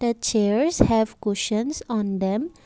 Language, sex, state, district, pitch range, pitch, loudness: English, female, Assam, Kamrup Metropolitan, 205-240 Hz, 220 Hz, -23 LUFS